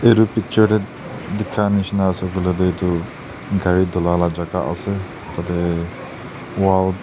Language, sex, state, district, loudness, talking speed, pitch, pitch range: Nagamese, male, Nagaland, Dimapur, -19 LUFS, 145 wpm, 95 Hz, 90-100 Hz